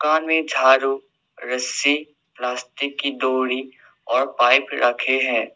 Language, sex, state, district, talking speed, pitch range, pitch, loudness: Hindi, male, Assam, Sonitpur, 110 wpm, 125-145 Hz, 130 Hz, -20 LUFS